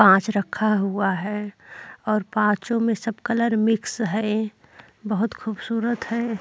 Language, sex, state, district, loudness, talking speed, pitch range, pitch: Hindi, female, Uttar Pradesh, Jyotiba Phule Nagar, -23 LUFS, 130 wpm, 210-230 Hz, 215 Hz